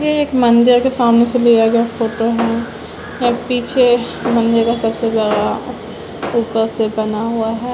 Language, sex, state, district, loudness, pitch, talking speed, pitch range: Hindi, female, Bihar, Vaishali, -15 LUFS, 235 Hz, 165 wpm, 225-245 Hz